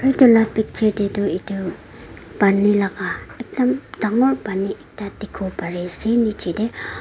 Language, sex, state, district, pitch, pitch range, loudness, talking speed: Nagamese, female, Nagaland, Dimapur, 205 Hz, 190-225 Hz, -20 LUFS, 155 wpm